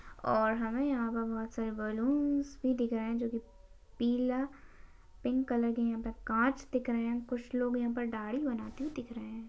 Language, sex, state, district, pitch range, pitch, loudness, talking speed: Hindi, female, Maharashtra, Solapur, 230-255 Hz, 240 Hz, -34 LUFS, 185 wpm